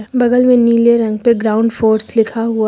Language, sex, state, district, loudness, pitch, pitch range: Hindi, female, Uttar Pradesh, Lucknow, -13 LUFS, 230 Hz, 220-235 Hz